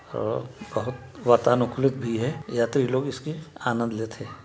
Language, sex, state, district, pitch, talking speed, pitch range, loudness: Chhattisgarhi, male, Chhattisgarh, Sarguja, 125 Hz, 120 wpm, 120-135 Hz, -26 LUFS